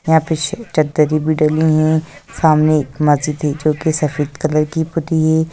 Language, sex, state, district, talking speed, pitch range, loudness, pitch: Hindi, female, Bihar, Sitamarhi, 150 wpm, 150-160 Hz, -16 LUFS, 155 Hz